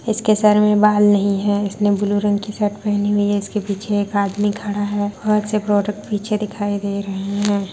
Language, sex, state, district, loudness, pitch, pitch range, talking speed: Hindi, female, Bihar, Saharsa, -18 LUFS, 205 Hz, 205-210 Hz, 210 wpm